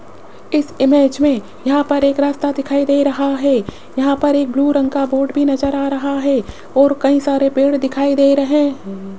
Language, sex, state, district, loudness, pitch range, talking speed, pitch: Hindi, female, Rajasthan, Jaipur, -15 LUFS, 275-285 Hz, 200 wpm, 280 Hz